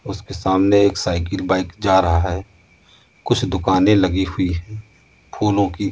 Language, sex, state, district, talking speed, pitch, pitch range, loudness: Hindi, male, Uttar Pradesh, Muzaffarnagar, 150 wpm, 95 Hz, 95-100 Hz, -18 LUFS